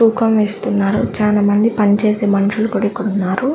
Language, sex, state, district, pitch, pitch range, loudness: Telugu, female, Andhra Pradesh, Chittoor, 210 Hz, 205-220 Hz, -15 LUFS